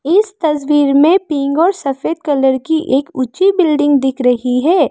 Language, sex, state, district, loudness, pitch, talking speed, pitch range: Hindi, female, Arunachal Pradesh, Lower Dibang Valley, -14 LUFS, 295 Hz, 170 wpm, 270-335 Hz